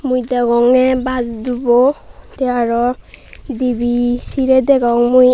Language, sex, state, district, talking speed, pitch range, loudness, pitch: Chakma, female, Tripura, Unakoti, 110 wpm, 240-255 Hz, -15 LUFS, 250 Hz